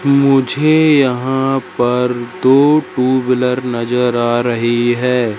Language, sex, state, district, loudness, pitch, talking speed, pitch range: Hindi, male, Madhya Pradesh, Katni, -14 LUFS, 125 Hz, 100 wpm, 120-135 Hz